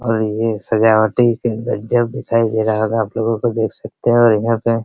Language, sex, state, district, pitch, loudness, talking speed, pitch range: Hindi, male, Bihar, Araria, 115 Hz, -16 LUFS, 235 wpm, 110-115 Hz